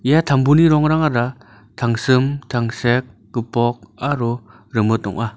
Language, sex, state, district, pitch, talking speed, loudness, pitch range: Garo, male, Meghalaya, North Garo Hills, 120 Hz, 100 wpm, -18 LUFS, 115-135 Hz